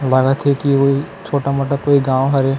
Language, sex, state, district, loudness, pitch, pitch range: Chhattisgarhi, male, Chhattisgarh, Kabirdham, -16 LUFS, 140 Hz, 135-140 Hz